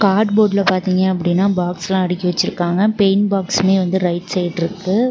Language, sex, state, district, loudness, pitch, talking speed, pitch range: Tamil, female, Tamil Nadu, Namakkal, -17 LUFS, 190 Hz, 150 wpm, 180-195 Hz